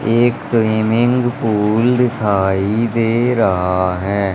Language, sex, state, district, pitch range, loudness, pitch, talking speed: Hindi, male, Madhya Pradesh, Umaria, 100-120 Hz, -16 LUFS, 110 Hz, 95 wpm